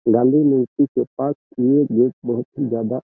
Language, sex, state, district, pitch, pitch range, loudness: Hindi, male, Uttar Pradesh, Jyotiba Phule Nagar, 130 Hz, 120-140 Hz, -19 LUFS